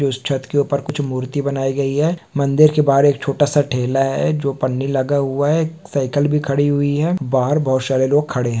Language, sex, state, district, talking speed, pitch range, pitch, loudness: Hindi, male, Bihar, Supaul, 230 wpm, 135-145 Hz, 140 Hz, -18 LUFS